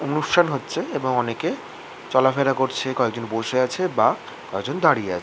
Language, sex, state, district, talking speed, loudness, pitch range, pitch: Bengali, male, West Bengal, Kolkata, 160 wpm, -22 LUFS, 115-140 Hz, 130 Hz